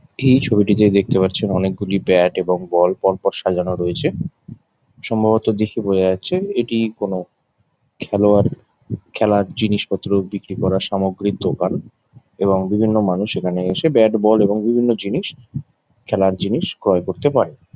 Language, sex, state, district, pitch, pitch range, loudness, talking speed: Bengali, male, West Bengal, Jalpaiguri, 100 Hz, 95-110 Hz, -18 LUFS, 135 wpm